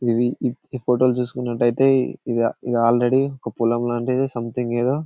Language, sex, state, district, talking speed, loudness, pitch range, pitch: Telugu, male, Telangana, Karimnagar, 140 wpm, -21 LUFS, 120-130 Hz, 120 Hz